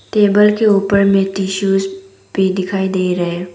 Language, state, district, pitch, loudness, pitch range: Hindi, Arunachal Pradesh, Papum Pare, 195 Hz, -15 LUFS, 185-200 Hz